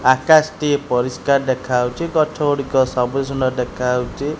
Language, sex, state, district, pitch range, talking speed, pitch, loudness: Odia, male, Odisha, Khordha, 125-145 Hz, 125 wpm, 135 Hz, -18 LUFS